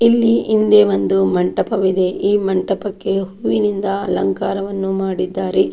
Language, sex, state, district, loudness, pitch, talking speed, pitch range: Kannada, female, Karnataka, Dakshina Kannada, -17 LUFS, 195 Hz, 95 wpm, 185-205 Hz